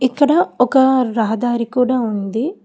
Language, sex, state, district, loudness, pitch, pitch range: Telugu, female, Telangana, Hyderabad, -16 LUFS, 250 Hz, 230-265 Hz